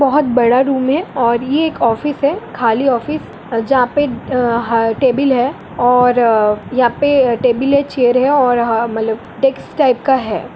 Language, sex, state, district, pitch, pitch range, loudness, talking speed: Hindi, female, Bihar, Gopalganj, 250 Hz, 235-275 Hz, -14 LUFS, 160 wpm